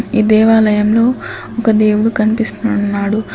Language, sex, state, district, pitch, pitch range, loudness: Telugu, female, Telangana, Adilabad, 215 Hz, 210-225 Hz, -13 LUFS